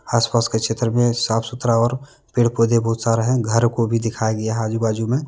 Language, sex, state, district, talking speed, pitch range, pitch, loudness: Hindi, male, Jharkhand, Deoghar, 240 wpm, 115-120 Hz, 115 Hz, -19 LUFS